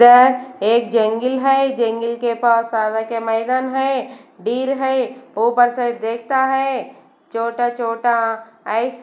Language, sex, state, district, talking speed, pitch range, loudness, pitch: Hindi, female, Bihar, West Champaran, 135 wpm, 230-260 Hz, -18 LUFS, 240 Hz